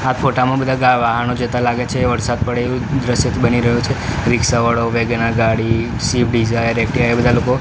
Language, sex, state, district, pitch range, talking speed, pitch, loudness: Gujarati, male, Gujarat, Gandhinagar, 115-125 Hz, 190 wpm, 120 Hz, -16 LUFS